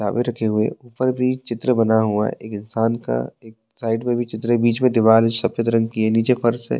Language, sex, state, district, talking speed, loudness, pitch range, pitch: Hindi, male, Uttarakhand, Tehri Garhwal, 240 wpm, -20 LUFS, 110-120 Hz, 115 Hz